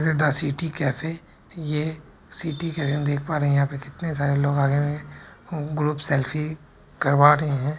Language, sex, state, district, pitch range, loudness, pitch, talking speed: Hindi, male, Bihar, Purnia, 140-155 Hz, -24 LUFS, 150 Hz, 190 wpm